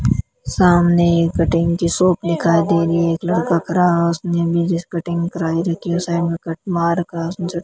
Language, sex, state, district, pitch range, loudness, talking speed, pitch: Hindi, female, Rajasthan, Bikaner, 170-175 Hz, -18 LUFS, 205 wpm, 170 Hz